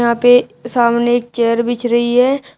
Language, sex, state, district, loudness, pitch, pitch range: Hindi, female, Uttar Pradesh, Shamli, -14 LUFS, 240 Hz, 235-245 Hz